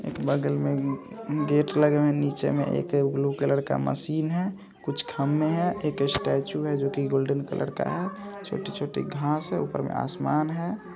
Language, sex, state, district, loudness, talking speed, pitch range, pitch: Hindi, male, Bihar, Saharsa, -27 LUFS, 180 wpm, 140-170 Hz, 145 Hz